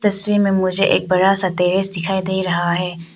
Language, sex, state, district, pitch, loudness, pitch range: Hindi, female, Arunachal Pradesh, Papum Pare, 185 Hz, -17 LUFS, 180-195 Hz